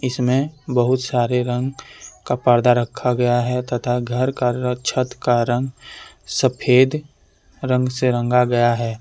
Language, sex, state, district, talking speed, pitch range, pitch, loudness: Hindi, male, Jharkhand, Deoghar, 140 wpm, 120-130 Hz, 125 Hz, -19 LUFS